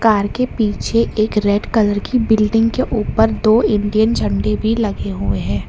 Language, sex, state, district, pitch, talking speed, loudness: Hindi, male, Karnataka, Bangalore, 215 Hz, 180 wpm, -16 LUFS